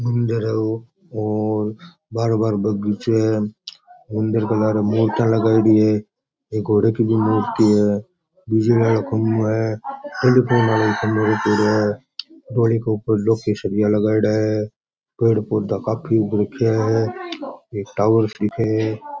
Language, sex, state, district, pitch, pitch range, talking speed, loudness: Rajasthani, male, Rajasthan, Churu, 110 Hz, 105-115 Hz, 135 wpm, -19 LUFS